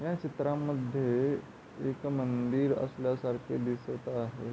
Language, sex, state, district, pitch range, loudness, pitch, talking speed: Marathi, male, Maharashtra, Pune, 125-140 Hz, -33 LUFS, 130 Hz, 95 wpm